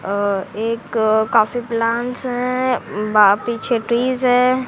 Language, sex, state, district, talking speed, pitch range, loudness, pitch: Hindi, female, Maharashtra, Mumbai Suburban, 115 wpm, 215-250 Hz, -18 LUFS, 235 Hz